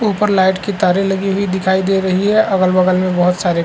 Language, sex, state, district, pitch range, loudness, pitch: Hindi, male, Chhattisgarh, Korba, 185-195 Hz, -14 LUFS, 190 Hz